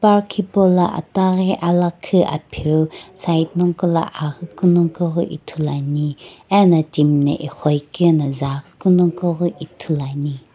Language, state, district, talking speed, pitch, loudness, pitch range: Sumi, Nagaland, Dimapur, 120 wpm, 170 Hz, -18 LUFS, 150-175 Hz